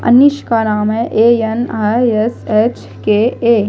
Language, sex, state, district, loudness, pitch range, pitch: Hindi, female, Maharashtra, Gondia, -13 LUFS, 215-240 Hz, 225 Hz